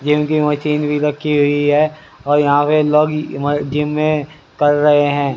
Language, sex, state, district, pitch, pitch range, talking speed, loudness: Hindi, male, Haryana, Rohtak, 150 Hz, 145-150 Hz, 180 wpm, -15 LUFS